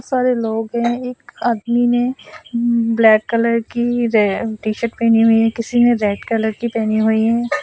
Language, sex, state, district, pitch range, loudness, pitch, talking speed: Hindi, female, Assam, Sonitpur, 220-240 Hz, -17 LUFS, 230 Hz, 180 wpm